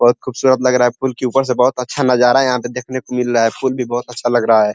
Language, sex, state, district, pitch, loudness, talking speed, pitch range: Hindi, male, Uttar Pradesh, Ghazipur, 125 Hz, -16 LUFS, 330 wpm, 120-130 Hz